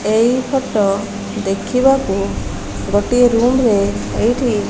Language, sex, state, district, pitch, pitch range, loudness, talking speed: Odia, female, Odisha, Malkangiri, 215 Hz, 200-245 Hz, -16 LUFS, 100 wpm